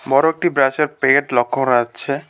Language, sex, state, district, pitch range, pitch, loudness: Bengali, male, West Bengal, Alipurduar, 135-150 Hz, 135 Hz, -17 LUFS